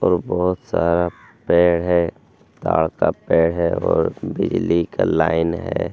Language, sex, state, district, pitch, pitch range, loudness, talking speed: Hindi, male, Bihar, Gaya, 85 Hz, 80-85 Hz, -19 LUFS, 120 wpm